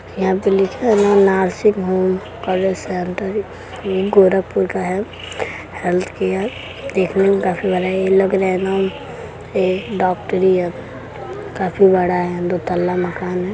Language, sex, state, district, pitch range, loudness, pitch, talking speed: Bhojpuri, female, Uttar Pradesh, Gorakhpur, 180-195 Hz, -18 LUFS, 190 Hz, 140 wpm